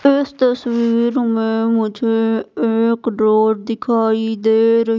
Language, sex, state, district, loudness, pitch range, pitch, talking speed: Hindi, female, Madhya Pradesh, Katni, -16 LUFS, 225-235 Hz, 225 Hz, 110 wpm